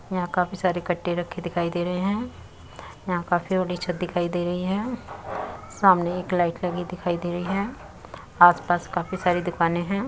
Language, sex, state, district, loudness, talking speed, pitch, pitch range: Hindi, female, Uttar Pradesh, Muzaffarnagar, -24 LUFS, 185 wpm, 180 Hz, 175-185 Hz